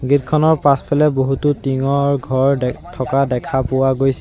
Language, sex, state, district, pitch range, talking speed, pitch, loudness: Assamese, male, Assam, Sonitpur, 130-145 Hz, 155 wpm, 135 Hz, -17 LUFS